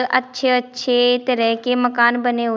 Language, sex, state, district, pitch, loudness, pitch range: Hindi, female, Uttar Pradesh, Shamli, 245 Hz, -17 LUFS, 240-250 Hz